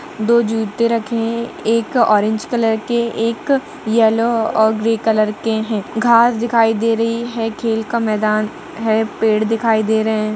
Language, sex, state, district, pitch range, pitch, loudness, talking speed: Hindi, female, Uttar Pradesh, Jalaun, 220-235 Hz, 225 Hz, -17 LUFS, 170 wpm